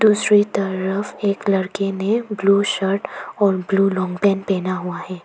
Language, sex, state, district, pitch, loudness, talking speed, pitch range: Hindi, female, Arunachal Pradesh, Papum Pare, 195 Hz, -19 LUFS, 160 wpm, 190-205 Hz